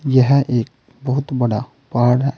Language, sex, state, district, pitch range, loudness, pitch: Hindi, male, Uttar Pradesh, Saharanpur, 120-135 Hz, -18 LUFS, 130 Hz